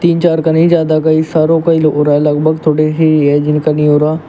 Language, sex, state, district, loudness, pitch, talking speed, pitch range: Hindi, male, Uttar Pradesh, Shamli, -11 LUFS, 155 Hz, 310 wpm, 150-160 Hz